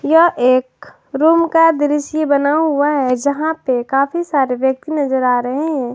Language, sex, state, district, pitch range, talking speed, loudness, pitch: Hindi, female, Jharkhand, Ranchi, 265-315 Hz, 170 wpm, -15 LUFS, 285 Hz